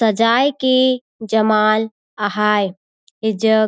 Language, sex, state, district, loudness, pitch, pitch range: Surgujia, female, Chhattisgarh, Sarguja, -17 LUFS, 220 Hz, 215-230 Hz